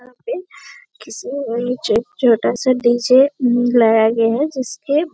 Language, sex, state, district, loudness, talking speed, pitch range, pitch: Hindi, female, Chhattisgarh, Bastar, -16 LUFS, 95 wpm, 235-280 Hz, 250 Hz